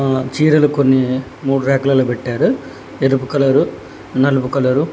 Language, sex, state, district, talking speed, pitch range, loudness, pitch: Telugu, male, Telangana, Hyderabad, 135 wpm, 130-140 Hz, -16 LUFS, 135 Hz